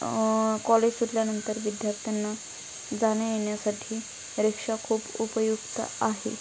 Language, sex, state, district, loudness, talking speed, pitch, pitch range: Marathi, female, Maharashtra, Pune, -28 LUFS, 85 wpm, 220 Hz, 215-225 Hz